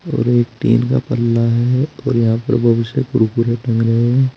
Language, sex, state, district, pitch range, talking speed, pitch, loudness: Hindi, male, Uttar Pradesh, Saharanpur, 115-130 Hz, 190 wpm, 120 Hz, -16 LUFS